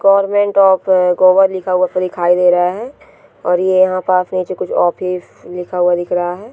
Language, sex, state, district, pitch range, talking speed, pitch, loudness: Hindi, female, Goa, North and South Goa, 180-190 Hz, 200 wpm, 185 Hz, -14 LUFS